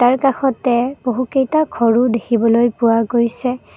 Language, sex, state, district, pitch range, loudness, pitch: Assamese, female, Assam, Kamrup Metropolitan, 235-260 Hz, -16 LUFS, 245 Hz